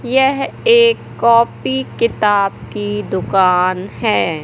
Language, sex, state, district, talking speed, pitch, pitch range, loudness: Hindi, male, Madhya Pradesh, Katni, 95 wpm, 195 Hz, 140-240 Hz, -15 LUFS